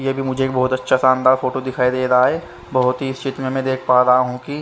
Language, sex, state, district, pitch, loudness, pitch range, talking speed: Hindi, male, Haryana, Charkhi Dadri, 130 Hz, -18 LUFS, 130-135 Hz, 260 wpm